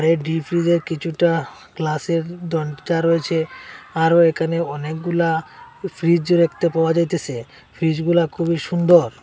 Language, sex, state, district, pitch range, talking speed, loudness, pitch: Bengali, male, Assam, Hailakandi, 160-170 Hz, 105 wpm, -19 LUFS, 165 Hz